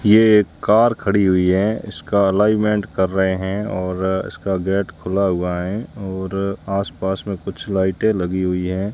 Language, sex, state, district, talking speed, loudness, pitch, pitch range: Hindi, male, Rajasthan, Jaisalmer, 160 wpm, -19 LUFS, 95 Hz, 95-105 Hz